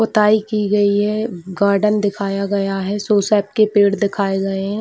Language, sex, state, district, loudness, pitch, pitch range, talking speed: Hindi, female, Chhattisgarh, Bilaspur, -17 LUFS, 205 Hz, 200-210 Hz, 175 wpm